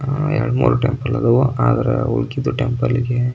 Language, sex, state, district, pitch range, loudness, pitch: Kannada, male, Karnataka, Belgaum, 120-130 Hz, -18 LUFS, 125 Hz